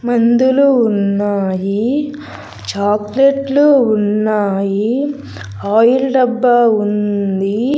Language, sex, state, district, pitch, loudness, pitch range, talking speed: Telugu, female, Andhra Pradesh, Sri Satya Sai, 225 Hz, -14 LUFS, 205-260 Hz, 55 wpm